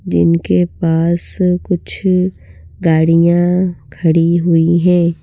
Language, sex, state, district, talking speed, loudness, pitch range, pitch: Hindi, female, Madhya Pradesh, Bhopal, 80 wpm, -14 LUFS, 155-175 Hz, 170 Hz